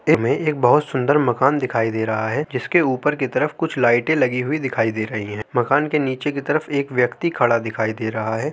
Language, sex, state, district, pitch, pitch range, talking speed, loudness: Hindi, male, Uttar Pradesh, Jalaun, 130 Hz, 115-145 Hz, 245 wpm, -20 LUFS